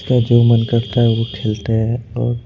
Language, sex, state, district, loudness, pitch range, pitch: Hindi, male, Madhya Pradesh, Bhopal, -16 LUFS, 115-120 Hz, 115 Hz